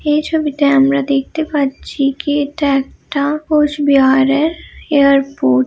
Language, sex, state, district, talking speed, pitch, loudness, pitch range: Bengali, female, West Bengal, Malda, 115 wpm, 285 Hz, -14 LUFS, 275-300 Hz